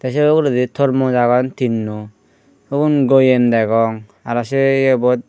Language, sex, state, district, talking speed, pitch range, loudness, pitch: Chakma, male, Tripura, Unakoti, 135 wpm, 115-135 Hz, -15 LUFS, 125 Hz